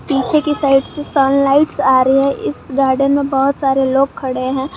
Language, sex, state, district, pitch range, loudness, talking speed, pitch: Hindi, male, Jharkhand, Garhwa, 265-280 Hz, -15 LUFS, 215 wpm, 275 Hz